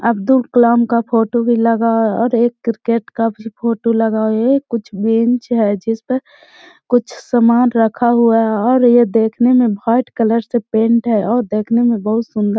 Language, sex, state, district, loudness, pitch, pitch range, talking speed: Hindi, female, Bihar, Gaya, -15 LUFS, 235 Hz, 225-240 Hz, 195 wpm